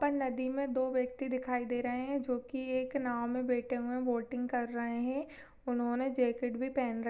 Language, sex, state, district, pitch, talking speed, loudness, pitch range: Hindi, female, Chhattisgarh, Sarguja, 250 Hz, 220 wpm, -35 LUFS, 245-260 Hz